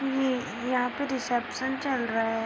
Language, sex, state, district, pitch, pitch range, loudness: Hindi, female, Uttar Pradesh, Hamirpur, 250 Hz, 240-265 Hz, -29 LUFS